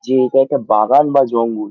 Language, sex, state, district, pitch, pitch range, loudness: Bengali, male, West Bengal, Dakshin Dinajpur, 130 Hz, 110-135 Hz, -14 LUFS